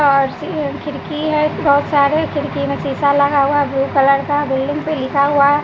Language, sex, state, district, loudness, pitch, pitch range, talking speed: Hindi, female, Bihar, West Champaran, -16 LUFS, 285 Hz, 275-295 Hz, 200 wpm